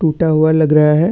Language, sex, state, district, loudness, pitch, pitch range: Hindi, male, Chhattisgarh, Bastar, -12 LUFS, 160 Hz, 155-160 Hz